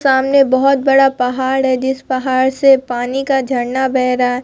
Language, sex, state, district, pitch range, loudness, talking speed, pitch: Hindi, female, Bihar, Katihar, 255-270 Hz, -14 LUFS, 190 wpm, 265 Hz